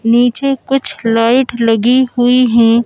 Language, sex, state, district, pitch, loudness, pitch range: Hindi, female, Madhya Pradesh, Bhopal, 240 Hz, -12 LUFS, 230-255 Hz